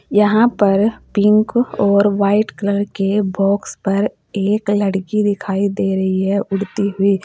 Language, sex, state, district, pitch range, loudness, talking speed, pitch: Hindi, female, Uttar Pradesh, Saharanpur, 195-210 Hz, -17 LUFS, 140 wpm, 200 Hz